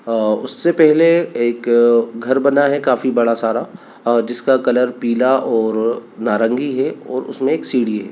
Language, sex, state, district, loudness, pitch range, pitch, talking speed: Hindi, male, Bihar, Sitamarhi, -16 LUFS, 115-130 Hz, 120 Hz, 155 wpm